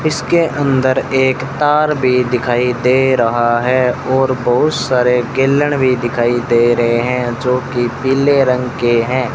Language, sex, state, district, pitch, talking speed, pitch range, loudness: Hindi, male, Rajasthan, Bikaner, 125 Hz, 155 wpm, 120-135 Hz, -14 LUFS